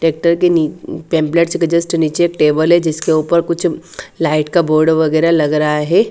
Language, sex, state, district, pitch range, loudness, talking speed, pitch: Hindi, female, Haryana, Charkhi Dadri, 155-170 Hz, -14 LUFS, 205 wpm, 165 Hz